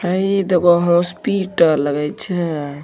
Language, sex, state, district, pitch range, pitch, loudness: Hindi, male, Bihar, Begusarai, 155-190 Hz, 175 Hz, -17 LUFS